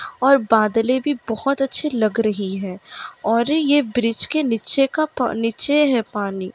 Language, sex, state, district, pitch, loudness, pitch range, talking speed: Hindi, female, Bihar, Kishanganj, 235 Hz, -19 LUFS, 220-275 Hz, 165 wpm